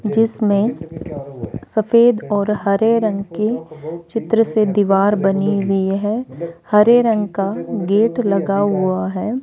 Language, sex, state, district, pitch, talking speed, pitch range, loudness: Hindi, female, Rajasthan, Jaipur, 205 Hz, 120 wpm, 195-225 Hz, -17 LUFS